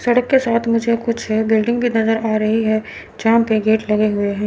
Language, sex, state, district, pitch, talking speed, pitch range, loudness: Hindi, female, Chandigarh, Chandigarh, 225 Hz, 230 wpm, 215-230 Hz, -17 LUFS